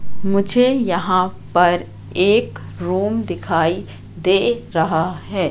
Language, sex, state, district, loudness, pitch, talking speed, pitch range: Hindi, female, Madhya Pradesh, Katni, -18 LUFS, 185 Hz, 100 wpm, 170-200 Hz